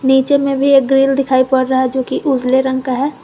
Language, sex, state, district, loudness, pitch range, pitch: Hindi, female, Jharkhand, Garhwa, -14 LUFS, 260-275 Hz, 265 Hz